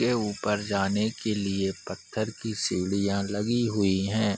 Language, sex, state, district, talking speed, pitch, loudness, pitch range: Hindi, male, Bihar, Sitamarhi, 165 wpm, 105 Hz, -28 LUFS, 100-110 Hz